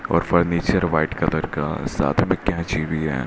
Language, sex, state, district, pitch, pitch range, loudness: Hindi, male, Rajasthan, Bikaner, 85 Hz, 80-85 Hz, -21 LUFS